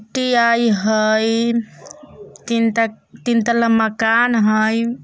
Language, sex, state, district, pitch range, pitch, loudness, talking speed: Bajjika, male, Bihar, Vaishali, 220-235 Hz, 230 Hz, -17 LUFS, 105 wpm